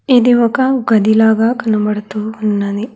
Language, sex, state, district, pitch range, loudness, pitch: Telugu, female, Telangana, Hyderabad, 210-240 Hz, -13 LUFS, 220 Hz